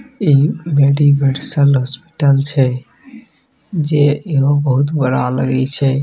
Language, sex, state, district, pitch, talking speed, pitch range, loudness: Maithili, male, Bihar, Begusarai, 140 Hz, 100 wpm, 135-150 Hz, -14 LUFS